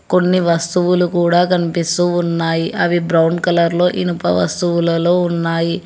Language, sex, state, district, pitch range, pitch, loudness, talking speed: Telugu, male, Telangana, Hyderabad, 170-180 Hz, 170 Hz, -15 LUFS, 110 wpm